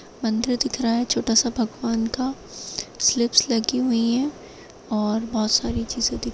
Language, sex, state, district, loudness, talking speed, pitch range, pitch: Hindi, female, Bihar, Madhepura, -22 LUFS, 180 wpm, 225-250 Hz, 235 Hz